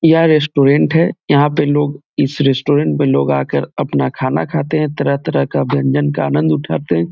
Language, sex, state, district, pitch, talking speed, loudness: Hindi, male, Bihar, Vaishali, 140 Hz, 185 wpm, -15 LUFS